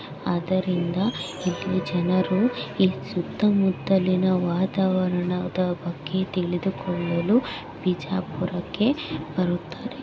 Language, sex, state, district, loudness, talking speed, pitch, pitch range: Kannada, male, Karnataka, Bijapur, -25 LUFS, 60 wpm, 185 Hz, 175-190 Hz